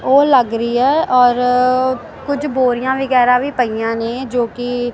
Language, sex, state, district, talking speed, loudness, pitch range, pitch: Punjabi, female, Punjab, Kapurthala, 160 wpm, -15 LUFS, 245-265 Hz, 250 Hz